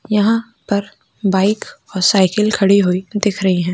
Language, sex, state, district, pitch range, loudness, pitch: Hindi, male, Rajasthan, Churu, 190-210 Hz, -16 LUFS, 200 Hz